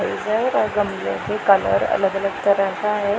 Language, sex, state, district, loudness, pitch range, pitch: Hindi, female, Punjab, Pathankot, -20 LUFS, 195-210 Hz, 205 Hz